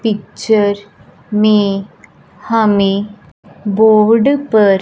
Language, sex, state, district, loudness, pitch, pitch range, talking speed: Hindi, female, Punjab, Fazilka, -13 LUFS, 210 Hz, 200-220 Hz, 60 wpm